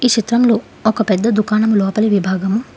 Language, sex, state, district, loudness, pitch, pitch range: Telugu, female, Telangana, Hyderabad, -15 LUFS, 215 Hz, 200-230 Hz